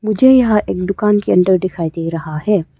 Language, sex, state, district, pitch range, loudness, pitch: Hindi, female, Arunachal Pradesh, Papum Pare, 165-210 Hz, -15 LUFS, 190 Hz